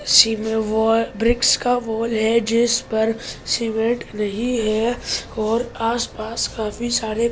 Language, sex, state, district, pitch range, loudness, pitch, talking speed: Hindi, male, Delhi, New Delhi, 220-235 Hz, -20 LUFS, 225 Hz, 155 wpm